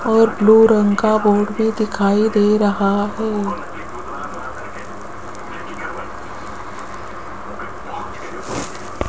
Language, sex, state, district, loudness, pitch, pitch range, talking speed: Hindi, female, Rajasthan, Jaipur, -17 LUFS, 210 Hz, 205-220 Hz, 65 wpm